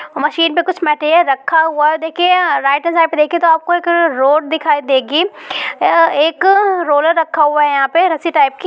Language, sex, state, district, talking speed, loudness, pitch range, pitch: Hindi, female, Bihar, East Champaran, 195 wpm, -13 LUFS, 300-340 Hz, 320 Hz